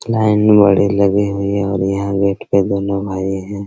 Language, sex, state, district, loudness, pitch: Hindi, male, Bihar, Araria, -15 LUFS, 100 Hz